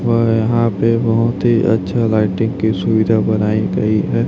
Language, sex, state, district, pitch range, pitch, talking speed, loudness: Hindi, male, Chhattisgarh, Raipur, 105-115 Hz, 110 Hz, 170 wpm, -15 LUFS